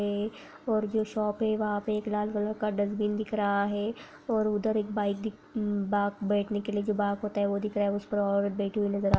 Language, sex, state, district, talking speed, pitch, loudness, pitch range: Hindi, female, Maharashtra, Aurangabad, 280 wpm, 210 Hz, -30 LUFS, 205-215 Hz